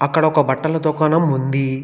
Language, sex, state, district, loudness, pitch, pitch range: Telugu, male, Telangana, Hyderabad, -17 LUFS, 150 Hz, 135-160 Hz